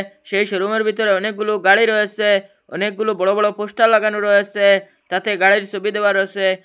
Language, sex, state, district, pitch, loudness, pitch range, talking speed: Bengali, male, Assam, Hailakandi, 205 Hz, -17 LUFS, 195-210 Hz, 170 wpm